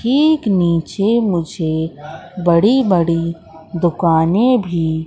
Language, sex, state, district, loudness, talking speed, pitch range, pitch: Hindi, female, Madhya Pradesh, Katni, -16 LUFS, 85 wpm, 160-210 Hz, 170 Hz